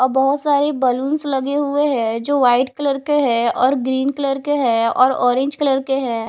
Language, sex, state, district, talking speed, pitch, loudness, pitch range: Hindi, female, Himachal Pradesh, Shimla, 210 wpm, 270 Hz, -17 LUFS, 250-285 Hz